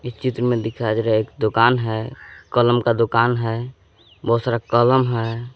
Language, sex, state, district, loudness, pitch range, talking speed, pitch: Hindi, male, Jharkhand, Palamu, -19 LUFS, 115-120 Hz, 185 wpm, 115 Hz